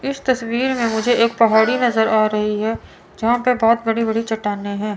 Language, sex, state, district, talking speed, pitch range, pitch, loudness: Hindi, female, Chandigarh, Chandigarh, 205 wpm, 220-240 Hz, 225 Hz, -18 LUFS